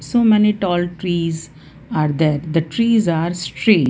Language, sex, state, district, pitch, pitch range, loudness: English, female, Gujarat, Valsad, 170 Hz, 155-210 Hz, -18 LUFS